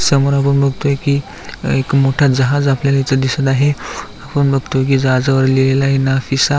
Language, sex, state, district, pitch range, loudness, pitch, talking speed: Marathi, male, Maharashtra, Aurangabad, 135-140 Hz, -14 LUFS, 135 Hz, 165 wpm